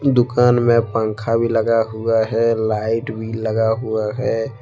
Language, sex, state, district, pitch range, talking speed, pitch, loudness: Hindi, male, Jharkhand, Deoghar, 110-115 Hz, 155 wpm, 115 Hz, -18 LUFS